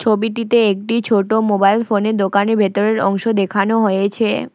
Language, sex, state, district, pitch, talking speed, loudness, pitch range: Bengali, female, West Bengal, Alipurduar, 210 Hz, 130 wpm, -16 LUFS, 200-225 Hz